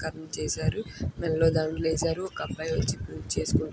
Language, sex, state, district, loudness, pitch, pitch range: Telugu, female, Andhra Pradesh, Guntur, -29 LUFS, 160 Hz, 160-165 Hz